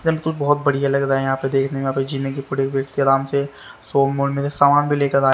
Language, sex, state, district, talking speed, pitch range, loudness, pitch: Hindi, male, Haryana, Rohtak, 200 wpm, 135-140 Hz, -19 LUFS, 140 Hz